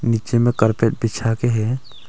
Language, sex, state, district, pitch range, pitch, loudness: Hindi, male, Arunachal Pradesh, Longding, 115-120 Hz, 115 Hz, -19 LUFS